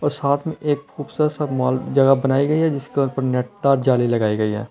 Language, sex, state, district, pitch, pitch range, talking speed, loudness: Hindi, male, Delhi, New Delhi, 135 Hz, 130-145 Hz, 240 wpm, -20 LUFS